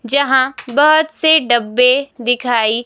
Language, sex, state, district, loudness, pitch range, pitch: Hindi, female, Himachal Pradesh, Shimla, -13 LUFS, 240-285 Hz, 260 Hz